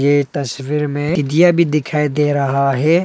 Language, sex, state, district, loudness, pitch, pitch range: Hindi, male, Arunachal Pradesh, Papum Pare, -16 LUFS, 145 Hz, 140-150 Hz